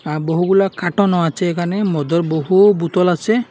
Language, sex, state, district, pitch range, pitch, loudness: Bengali, male, Assam, Hailakandi, 165-195 Hz, 180 Hz, -16 LUFS